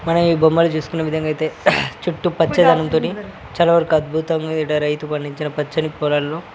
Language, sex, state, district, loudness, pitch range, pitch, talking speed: Telugu, male, Andhra Pradesh, Srikakulam, -18 LUFS, 150-165 Hz, 160 Hz, 145 wpm